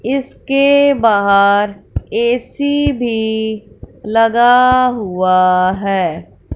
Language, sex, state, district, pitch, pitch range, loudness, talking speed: Hindi, female, Punjab, Fazilka, 225 Hz, 200-255 Hz, -13 LUFS, 65 wpm